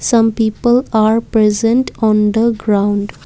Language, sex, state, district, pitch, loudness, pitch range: English, female, Assam, Kamrup Metropolitan, 220 Hz, -14 LUFS, 210-230 Hz